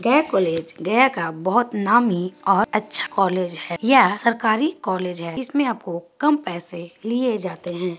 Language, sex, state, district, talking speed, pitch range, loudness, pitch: Hindi, female, Bihar, Gaya, 155 wpm, 175-245 Hz, -21 LUFS, 195 Hz